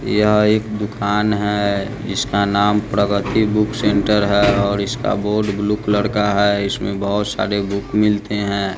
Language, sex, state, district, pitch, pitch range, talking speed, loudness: Hindi, male, Bihar, West Champaran, 105 Hz, 100-105 Hz, 155 wpm, -18 LUFS